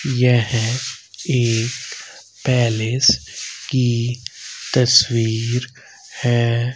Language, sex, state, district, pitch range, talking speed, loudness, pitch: Hindi, male, Haryana, Rohtak, 115-125 Hz, 55 wpm, -18 LUFS, 120 Hz